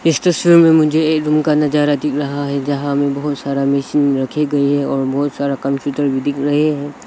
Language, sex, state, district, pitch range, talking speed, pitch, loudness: Hindi, male, Arunachal Pradesh, Lower Dibang Valley, 140-150 Hz, 230 wpm, 145 Hz, -16 LUFS